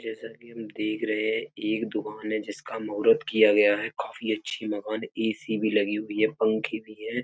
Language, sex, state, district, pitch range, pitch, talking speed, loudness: Hindi, male, Uttar Pradesh, Etah, 105-110 Hz, 110 Hz, 205 wpm, -27 LUFS